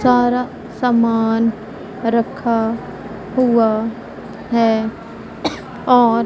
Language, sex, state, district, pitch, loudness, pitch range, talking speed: Hindi, female, Punjab, Pathankot, 230 Hz, -18 LUFS, 225-245 Hz, 55 wpm